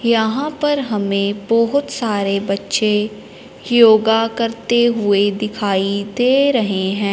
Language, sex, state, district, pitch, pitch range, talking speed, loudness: Hindi, male, Punjab, Fazilka, 220 Hz, 200-240 Hz, 110 wpm, -16 LUFS